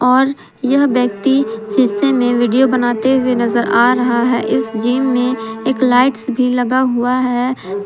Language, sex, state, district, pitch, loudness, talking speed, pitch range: Hindi, female, Jharkhand, Palamu, 250 Hz, -14 LUFS, 160 wpm, 235-260 Hz